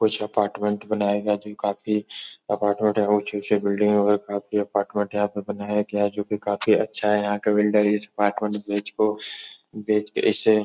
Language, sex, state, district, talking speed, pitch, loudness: Hindi, male, Uttar Pradesh, Etah, 210 wpm, 105 Hz, -23 LUFS